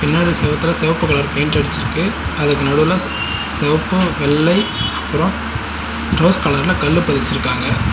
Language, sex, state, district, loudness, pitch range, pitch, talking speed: Tamil, male, Tamil Nadu, Nilgiris, -16 LUFS, 145-185 Hz, 155 Hz, 115 wpm